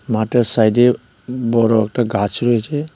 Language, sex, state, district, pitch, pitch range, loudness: Bengali, male, Tripura, West Tripura, 115 Hz, 110-125 Hz, -16 LUFS